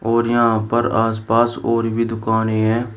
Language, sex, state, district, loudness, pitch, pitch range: Hindi, male, Uttar Pradesh, Shamli, -18 LUFS, 115 Hz, 110-115 Hz